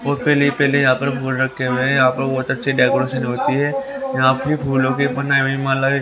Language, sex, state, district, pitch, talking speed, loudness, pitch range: Hindi, male, Haryana, Rohtak, 135 Hz, 250 wpm, -18 LUFS, 130-140 Hz